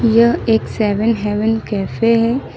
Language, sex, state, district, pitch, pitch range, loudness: Hindi, female, Jharkhand, Ranchi, 225 Hz, 210-230 Hz, -16 LUFS